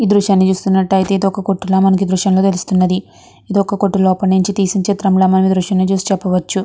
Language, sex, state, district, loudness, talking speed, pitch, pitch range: Telugu, female, Andhra Pradesh, Guntur, -14 LUFS, 100 wpm, 190 Hz, 190-195 Hz